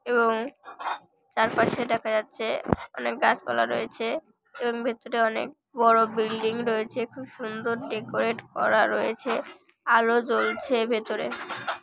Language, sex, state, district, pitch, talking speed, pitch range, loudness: Bengali, female, West Bengal, Jalpaiguri, 230 Hz, 115 wpm, 225-240 Hz, -26 LUFS